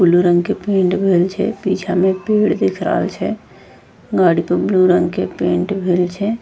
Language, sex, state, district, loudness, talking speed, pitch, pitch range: Angika, female, Bihar, Bhagalpur, -16 LUFS, 185 wpm, 185 Hz, 175-195 Hz